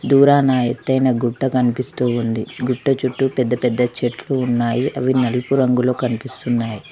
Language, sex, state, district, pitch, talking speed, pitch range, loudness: Telugu, female, Telangana, Mahabubabad, 125 Hz, 130 wpm, 120-130 Hz, -18 LUFS